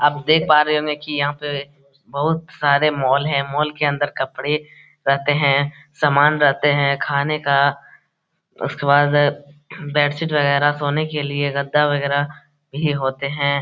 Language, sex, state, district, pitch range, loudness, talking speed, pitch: Hindi, male, Bihar, Saran, 140-150 Hz, -19 LUFS, 155 wpm, 145 Hz